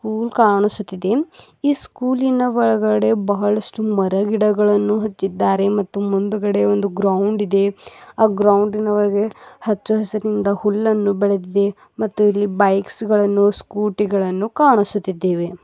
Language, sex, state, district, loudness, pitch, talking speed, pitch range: Kannada, female, Karnataka, Bidar, -18 LUFS, 205 Hz, 105 wpm, 200-215 Hz